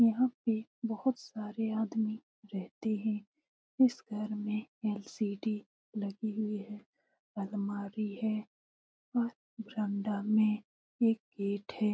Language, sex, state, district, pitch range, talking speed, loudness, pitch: Hindi, female, Bihar, Lakhisarai, 210-225 Hz, 105 wpm, -35 LUFS, 215 Hz